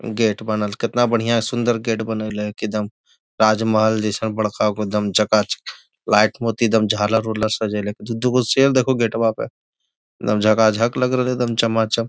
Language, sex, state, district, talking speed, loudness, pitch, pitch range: Magahi, male, Bihar, Gaya, 175 wpm, -19 LUFS, 110 Hz, 105-115 Hz